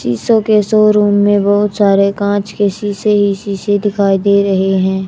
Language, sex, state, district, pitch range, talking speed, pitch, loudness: Hindi, female, Haryana, Jhajjar, 195-205 Hz, 175 wpm, 205 Hz, -12 LUFS